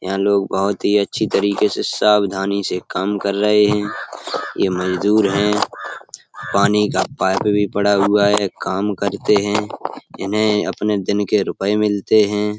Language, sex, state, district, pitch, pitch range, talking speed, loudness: Hindi, male, Uttar Pradesh, Etah, 100 Hz, 100-105 Hz, 155 wpm, -18 LUFS